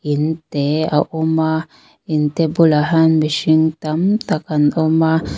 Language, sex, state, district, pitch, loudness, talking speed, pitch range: Mizo, female, Mizoram, Aizawl, 160 Hz, -16 LUFS, 165 wpm, 155-160 Hz